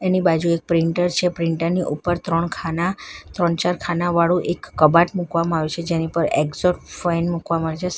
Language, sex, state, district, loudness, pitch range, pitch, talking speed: Gujarati, female, Gujarat, Valsad, -20 LUFS, 165-175 Hz, 170 Hz, 205 wpm